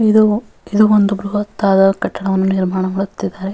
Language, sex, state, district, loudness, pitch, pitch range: Kannada, female, Karnataka, Dharwad, -16 LUFS, 200 Hz, 190-210 Hz